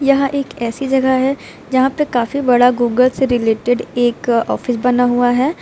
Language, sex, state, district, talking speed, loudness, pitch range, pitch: Hindi, female, Uttar Pradesh, Lucknow, 180 wpm, -15 LUFS, 245-270 Hz, 250 Hz